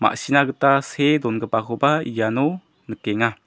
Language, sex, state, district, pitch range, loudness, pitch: Garo, male, Meghalaya, West Garo Hills, 115-140 Hz, -20 LUFS, 125 Hz